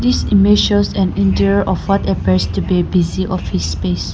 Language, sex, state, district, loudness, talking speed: English, female, Nagaland, Dimapur, -15 LUFS, 190 wpm